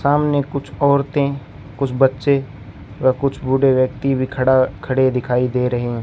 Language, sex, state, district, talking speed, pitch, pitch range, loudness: Hindi, male, Rajasthan, Bikaner, 160 wpm, 130 Hz, 125-140 Hz, -18 LUFS